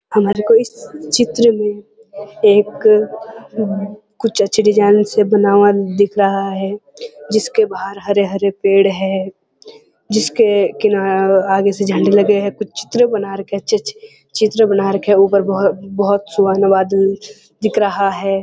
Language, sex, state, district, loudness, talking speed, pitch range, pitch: Hindi, male, Uttarakhand, Uttarkashi, -14 LUFS, 145 wpm, 195-215 Hz, 205 Hz